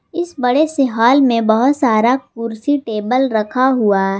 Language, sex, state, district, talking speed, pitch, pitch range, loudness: Hindi, female, Jharkhand, Garhwa, 155 wpm, 250 Hz, 220-275 Hz, -15 LUFS